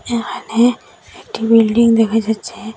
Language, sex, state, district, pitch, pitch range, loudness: Bengali, female, Assam, Hailakandi, 225 Hz, 225-235 Hz, -15 LUFS